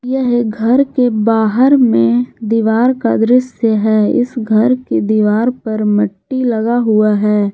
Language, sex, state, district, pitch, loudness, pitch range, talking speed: Hindi, female, Jharkhand, Garhwa, 225 Hz, -13 LUFS, 215-250 Hz, 150 wpm